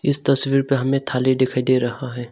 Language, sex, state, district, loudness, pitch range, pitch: Hindi, male, Arunachal Pradesh, Longding, -17 LUFS, 125-135 Hz, 130 Hz